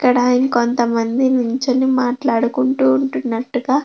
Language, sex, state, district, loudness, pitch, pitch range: Telugu, female, Andhra Pradesh, Krishna, -17 LUFS, 245 Hz, 230-255 Hz